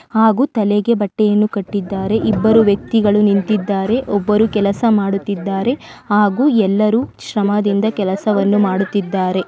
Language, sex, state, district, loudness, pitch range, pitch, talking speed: Kannada, female, Karnataka, Mysore, -16 LUFS, 200-220 Hz, 205 Hz, 100 wpm